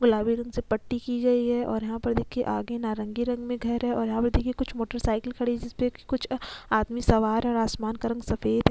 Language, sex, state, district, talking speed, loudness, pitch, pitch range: Hindi, female, Chhattisgarh, Sukma, 255 wpm, -27 LUFS, 235 Hz, 225-245 Hz